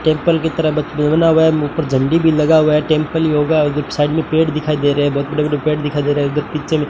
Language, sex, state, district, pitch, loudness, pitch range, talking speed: Hindi, male, Rajasthan, Bikaner, 155 Hz, -15 LUFS, 150-160 Hz, 285 wpm